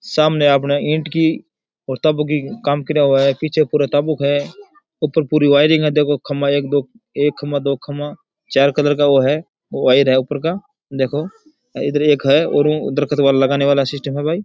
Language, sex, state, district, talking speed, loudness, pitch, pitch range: Rajasthani, male, Rajasthan, Churu, 190 wpm, -16 LUFS, 145 Hz, 140-155 Hz